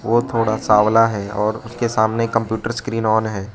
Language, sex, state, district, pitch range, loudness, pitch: Hindi, male, Arunachal Pradesh, Lower Dibang Valley, 110-115 Hz, -18 LUFS, 110 Hz